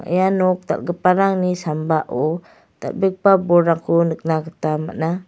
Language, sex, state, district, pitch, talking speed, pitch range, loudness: Garo, female, Meghalaya, West Garo Hills, 175 Hz, 100 wpm, 160-185 Hz, -19 LUFS